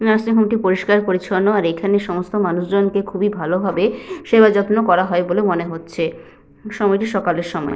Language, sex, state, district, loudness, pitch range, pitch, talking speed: Bengali, female, West Bengal, Malda, -17 LUFS, 175-210 Hz, 195 Hz, 155 wpm